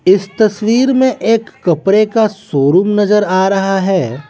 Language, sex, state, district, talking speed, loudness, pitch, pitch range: Hindi, male, Bihar, West Champaran, 155 wpm, -13 LUFS, 200 Hz, 190-220 Hz